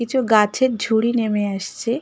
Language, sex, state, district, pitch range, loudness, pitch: Bengali, female, West Bengal, Malda, 210-240 Hz, -19 LUFS, 230 Hz